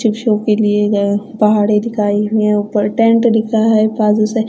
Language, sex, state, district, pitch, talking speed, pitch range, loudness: Hindi, female, Punjab, Fazilka, 215 Hz, 185 wpm, 210-225 Hz, -14 LUFS